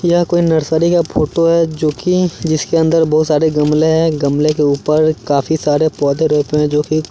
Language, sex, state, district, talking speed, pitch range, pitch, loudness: Hindi, male, Chandigarh, Chandigarh, 185 wpm, 150-165 Hz, 155 Hz, -14 LUFS